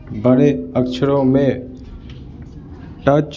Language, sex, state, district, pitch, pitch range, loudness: Hindi, male, Bihar, Patna, 130 Hz, 125-140 Hz, -16 LUFS